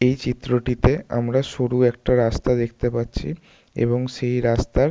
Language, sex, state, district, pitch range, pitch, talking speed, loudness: Bengali, male, West Bengal, North 24 Parganas, 120-125 Hz, 125 Hz, 135 wpm, -22 LUFS